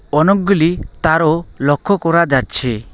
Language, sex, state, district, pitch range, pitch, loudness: Bengali, male, West Bengal, Alipurduar, 140-170 Hz, 160 Hz, -15 LUFS